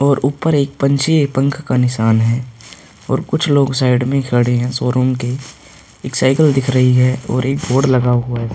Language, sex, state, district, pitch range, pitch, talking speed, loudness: Hindi, male, Uttar Pradesh, Hamirpur, 125-140 Hz, 130 Hz, 195 wpm, -15 LUFS